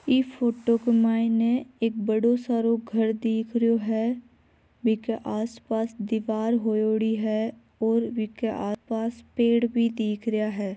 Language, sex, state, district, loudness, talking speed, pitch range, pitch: Marwari, female, Rajasthan, Nagaur, -25 LUFS, 145 wpm, 220-235 Hz, 225 Hz